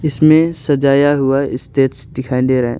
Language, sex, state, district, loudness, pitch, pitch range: Hindi, male, Arunachal Pradesh, Longding, -14 LUFS, 140 Hz, 130-145 Hz